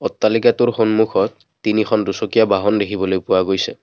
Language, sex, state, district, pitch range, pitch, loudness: Assamese, male, Assam, Kamrup Metropolitan, 95-110 Hz, 105 Hz, -17 LUFS